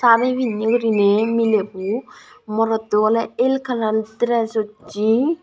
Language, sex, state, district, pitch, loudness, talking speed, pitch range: Chakma, female, Tripura, Dhalai, 225 Hz, -19 LUFS, 110 wpm, 215-240 Hz